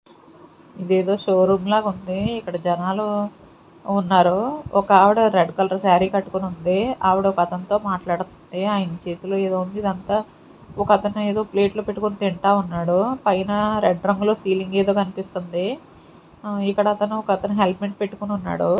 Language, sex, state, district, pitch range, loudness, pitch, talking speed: Telugu, female, Andhra Pradesh, Sri Satya Sai, 185-205 Hz, -21 LUFS, 195 Hz, 135 wpm